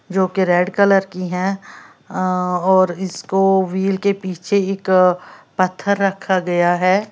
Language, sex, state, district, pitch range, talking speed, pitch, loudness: Hindi, female, Uttar Pradesh, Lalitpur, 185-195 Hz, 135 wpm, 190 Hz, -17 LUFS